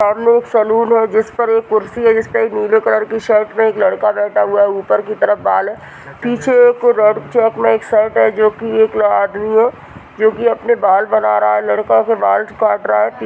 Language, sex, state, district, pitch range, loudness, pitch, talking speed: Hindi, female, Uttar Pradesh, Budaun, 195-230 Hz, -14 LUFS, 215 Hz, 235 wpm